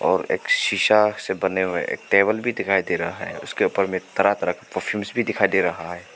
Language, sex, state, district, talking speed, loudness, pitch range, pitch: Hindi, male, Arunachal Pradesh, Papum Pare, 245 wpm, -21 LUFS, 95-120 Hz, 105 Hz